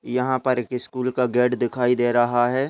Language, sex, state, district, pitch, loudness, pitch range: Hindi, male, Chhattisgarh, Rajnandgaon, 125 Hz, -22 LUFS, 120-130 Hz